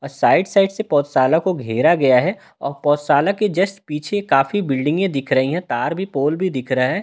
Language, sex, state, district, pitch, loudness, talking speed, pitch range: Hindi, male, Delhi, New Delhi, 150 Hz, -18 LUFS, 240 wpm, 135-190 Hz